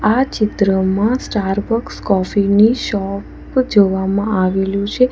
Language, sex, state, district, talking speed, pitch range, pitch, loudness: Gujarati, female, Gujarat, Valsad, 115 wpm, 195-225 Hz, 205 Hz, -16 LUFS